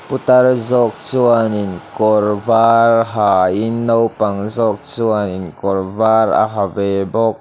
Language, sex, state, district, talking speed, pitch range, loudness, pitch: Mizo, male, Mizoram, Aizawl, 130 wpm, 100-115 Hz, -15 LUFS, 110 Hz